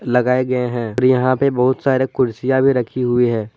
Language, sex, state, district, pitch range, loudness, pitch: Hindi, male, Jharkhand, Deoghar, 125-130 Hz, -17 LUFS, 125 Hz